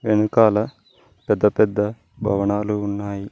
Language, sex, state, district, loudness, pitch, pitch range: Telugu, male, Telangana, Mahabubabad, -20 LUFS, 105 Hz, 100-105 Hz